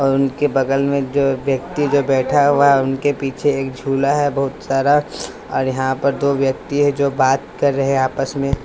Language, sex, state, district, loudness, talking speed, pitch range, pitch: Hindi, male, Bihar, West Champaran, -17 LUFS, 210 wpm, 135-140 Hz, 135 Hz